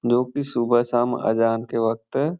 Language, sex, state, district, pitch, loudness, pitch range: Hindi, male, Uttar Pradesh, Varanasi, 120 Hz, -22 LUFS, 115-125 Hz